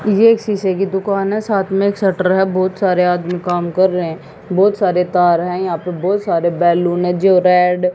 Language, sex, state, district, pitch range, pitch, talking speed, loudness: Hindi, female, Haryana, Jhajjar, 180-195 Hz, 185 Hz, 235 wpm, -15 LUFS